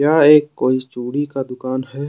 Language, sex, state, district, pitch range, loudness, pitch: Hindi, male, Jharkhand, Deoghar, 130-145 Hz, -17 LUFS, 135 Hz